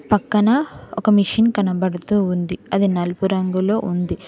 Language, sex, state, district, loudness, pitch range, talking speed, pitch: Telugu, female, Telangana, Mahabubabad, -19 LUFS, 185-210 Hz, 125 wpm, 195 Hz